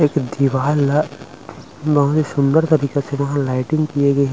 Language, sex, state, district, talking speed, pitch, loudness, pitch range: Chhattisgarhi, male, Chhattisgarh, Rajnandgaon, 180 wpm, 140 Hz, -18 LUFS, 140-150 Hz